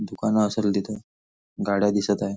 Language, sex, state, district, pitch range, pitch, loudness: Marathi, male, Maharashtra, Nagpur, 100-105 Hz, 100 Hz, -24 LUFS